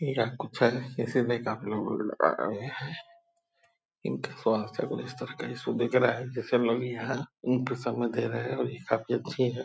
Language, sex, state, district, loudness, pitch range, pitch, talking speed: Hindi, male, Bihar, Purnia, -30 LUFS, 120-135 Hz, 125 Hz, 180 wpm